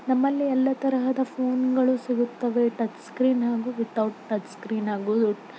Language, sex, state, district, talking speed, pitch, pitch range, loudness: Kannada, female, Karnataka, Belgaum, 120 wpm, 240 Hz, 225-260 Hz, -25 LUFS